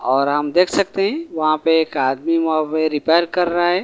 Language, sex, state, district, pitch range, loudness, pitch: Hindi, male, Delhi, New Delhi, 155-175 Hz, -18 LUFS, 160 Hz